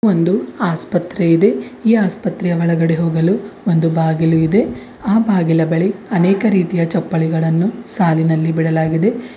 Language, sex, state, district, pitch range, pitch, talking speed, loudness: Kannada, female, Karnataka, Bidar, 165-200 Hz, 175 Hz, 115 wpm, -16 LUFS